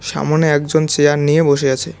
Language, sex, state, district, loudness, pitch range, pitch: Bengali, male, West Bengal, Cooch Behar, -14 LUFS, 140-155 Hz, 145 Hz